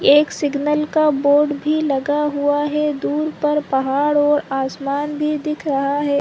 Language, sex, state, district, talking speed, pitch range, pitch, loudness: Hindi, female, Chhattisgarh, Rajnandgaon, 165 wpm, 285-300 Hz, 295 Hz, -18 LUFS